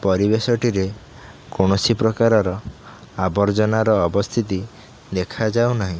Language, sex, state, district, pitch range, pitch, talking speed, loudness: Odia, male, Odisha, Khordha, 95-110 Hz, 105 Hz, 70 wpm, -19 LUFS